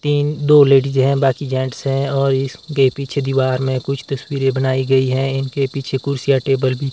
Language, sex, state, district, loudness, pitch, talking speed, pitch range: Hindi, male, Himachal Pradesh, Shimla, -17 LUFS, 135 Hz, 200 wpm, 130-140 Hz